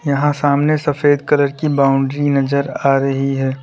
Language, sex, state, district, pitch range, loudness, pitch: Hindi, male, Uttar Pradesh, Lalitpur, 135-145 Hz, -16 LUFS, 140 Hz